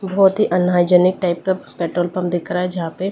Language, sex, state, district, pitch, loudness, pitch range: Hindi, female, Delhi, New Delhi, 180 Hz, -18 LUFS, 175-190 Hz